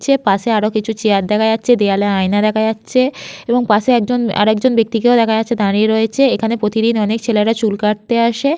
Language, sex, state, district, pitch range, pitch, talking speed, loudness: Bengali, female, West Bengal, Malda, 210-235 Hz, 220 Hz, 180 wpm, -15 LUFS